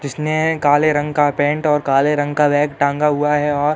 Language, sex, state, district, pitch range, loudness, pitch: Hindi, male, Uttar Pradesh, Hamirpur, 145-150 Hz, -16 LUFS, 145 Hz